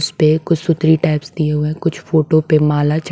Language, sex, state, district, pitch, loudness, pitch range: Hindi, female, Maharashtra, Mumbai Suburban, 155 Hz, -15 LUFS, 150-160 Hz